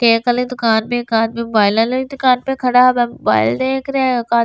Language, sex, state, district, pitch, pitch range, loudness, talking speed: Hindi, female, Delhi, New Delhi, 245 Hz, 230-255 Hz, -15 LUFS, 245 wpm